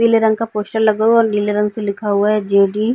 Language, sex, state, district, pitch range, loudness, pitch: Hindi, female, Uttar Pradesh, Varanasi, 210-220 Hz, -16 LUFS, 215 Hz